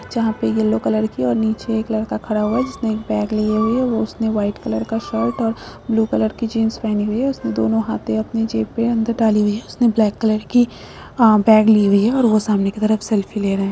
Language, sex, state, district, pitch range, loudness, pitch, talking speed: Hindi, female, Jharkhand, Sahebganj, 205-225 Hz, -18 LUFS, 220 Hz, 260 wpm